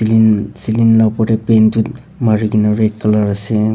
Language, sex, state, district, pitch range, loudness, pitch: Nagamese, male, Nagaland, Kohima, 105-110 Hz, -14 LUFS, 110 Hz